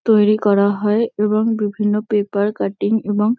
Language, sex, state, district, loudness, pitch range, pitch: Bengali, female, West Bengal, Kolkata, -17 LUFS, 205-215 Hz, 210 Hz